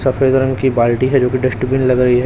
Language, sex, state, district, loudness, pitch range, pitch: Hindi, male, Chhattisgarh, Raipur, -14 LUFS, 125-130 Hz, 130 Hz